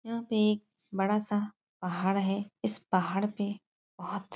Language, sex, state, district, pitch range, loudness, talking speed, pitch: Hindi, female, Uttar Pradesh, Etah, 190-210 Hz, -31 LUFS, 165 wpm, 205 Hz